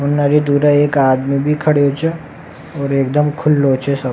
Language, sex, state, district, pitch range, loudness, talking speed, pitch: Rajasthani, male, Rajasthan, Nagaur, 140-150 Hz, -14 LUFS, 205 wpm, 145 Hz